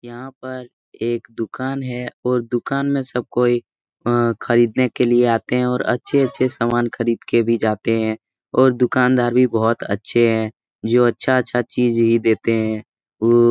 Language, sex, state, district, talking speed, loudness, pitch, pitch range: Hindi, male, Bihar, Jahanabad, 170 wpm, -19 LUFS, 120 Hz, 115-125 Hz